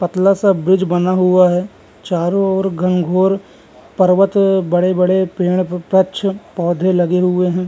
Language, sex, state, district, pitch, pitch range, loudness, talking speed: Hindi, male, Bihar, Vaishali, 185 Hz, 180-190 Hz, -15 LUFS, 135 wpm